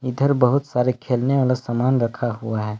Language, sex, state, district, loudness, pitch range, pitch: Hindi, male, Jharkhand, Palamu, -21 LUFS, 120-130 Hz, 125 Hz